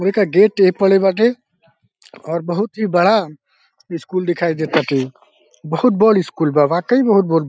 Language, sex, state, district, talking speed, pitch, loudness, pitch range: Hindi, male, Uttar Pradesh, Deoria, 160 wpm, 180 Hz, -16 LUFS, 165-210 Hz